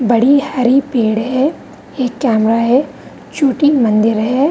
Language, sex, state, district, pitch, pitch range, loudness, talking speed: Hindi, female, Bihar, Vaishali, 255 Hz, 230-275 Hz, -14 LUFS, 135 wpm